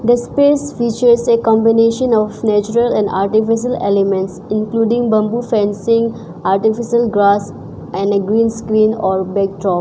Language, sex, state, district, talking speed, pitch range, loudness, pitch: English, female, Arunachal Pradesh, Papum Pare, 130 wpm, 200-235 Hz, -15 LUFS, 220 Hz